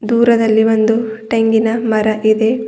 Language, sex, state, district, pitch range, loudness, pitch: Kannada, female, Karnataka, Bidar, 220-230 Hz, -14 LUFS, 225 Hz